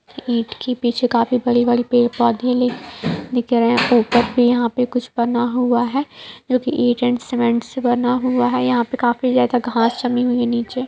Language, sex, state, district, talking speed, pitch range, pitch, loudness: Hindi, female, Bihar, East Champaran, 180 wpm, 240-250 Hz, 245 Hz, -18 LUFS